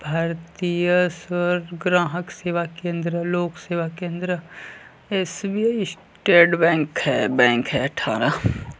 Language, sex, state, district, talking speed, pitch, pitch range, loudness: Hindi, male, Chhattisgarh, Balrampur, 110 wpm, 175 Hz, 165-180 Hz, -22 LUFS